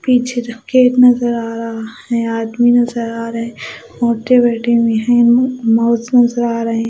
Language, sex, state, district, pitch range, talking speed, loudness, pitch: Hindi, female, Odisha, Malkangiri, 230-245 Hz, 185 wpm, -14 LUFS, 235 Hz